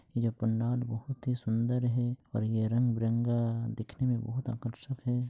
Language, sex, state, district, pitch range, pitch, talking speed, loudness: Hindi, male, Jharkhand, Sahebganj, 115-125 Hz, 120 Hz, 145 wpm, -32 LUFS